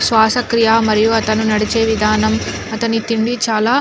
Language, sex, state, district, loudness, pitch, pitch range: Telugu, female, Andhra Pradesh, Anantapur, -15 LUFS, 220 Hz, 215-230 Hz